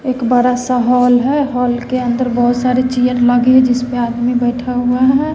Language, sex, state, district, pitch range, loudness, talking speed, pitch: Hindi, female, Bihar, West Champaran, 245-255 Hz, -14 LUFS, 200 wpm, 250 Hz